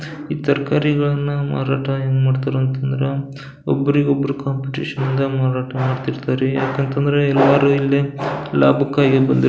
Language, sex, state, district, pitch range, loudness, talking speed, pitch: Kannada, male, Karnataka, Belgaum, 135-140 Hz, -18 LUFS, 115 wpm, 140 Hz